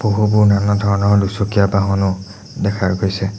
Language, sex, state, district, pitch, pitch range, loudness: Assamese, male, Assam, Sonitpur, 100 Hz, 100-105 Hz, -16 LUFS